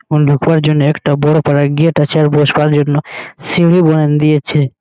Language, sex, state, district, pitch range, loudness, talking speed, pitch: Bengali, male, West Bengal, Malda, 145-155 Hz, -12 LUFS, 160 wpm, 150 Hz